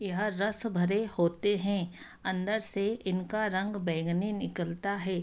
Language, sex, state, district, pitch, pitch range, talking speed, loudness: Hindi, female, Bihar, Darbhanga, 195 Hz, 185-210 Hz, 140 wpm, -31 LUFS